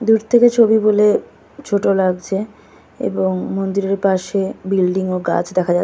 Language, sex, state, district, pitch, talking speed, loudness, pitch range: Bengali, female, West Bengal, Kolkata, 195 Hz, 135 wpm, -17 LUFS, 185-210 Hz